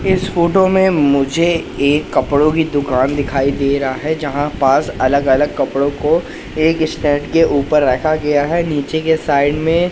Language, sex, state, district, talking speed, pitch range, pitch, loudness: Hindi, male, Madhya Pradesh, Katni, 175 wpm, 140-160 Hz, 145 Hz, -15 LUFS